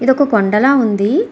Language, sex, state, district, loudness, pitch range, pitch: Telugu, female, Andhra Pradesh, Srikakulam, -13 LUFS, 210-275 Hz, 255 Hz